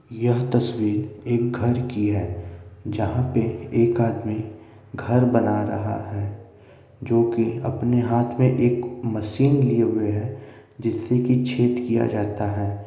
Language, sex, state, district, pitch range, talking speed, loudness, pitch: Maithili, male, Bihar, Begusarai, 105-120 Hz, 140 wpm, -22 LUFS, 115 Hz